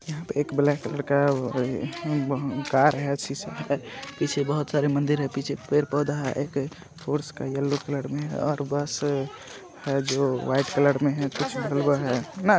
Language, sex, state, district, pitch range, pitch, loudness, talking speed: Hindi, male, Jharkhand, Jamtara, 135-145 Hz, 140 Hz, -26 LUFS, 180 wpm